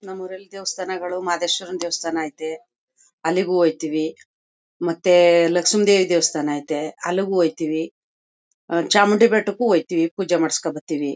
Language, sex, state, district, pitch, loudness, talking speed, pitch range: Kannada, female, Karnataka, Mysore, 170 Hz, -20 LUFS, 115 wpm, 160-185 Hz